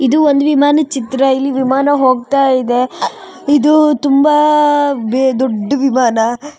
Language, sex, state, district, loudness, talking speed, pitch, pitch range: Kannada, female, Karnataka, Shimoga, -12 LUFS, 110 wpm, 275 Hz, 260-295 Hz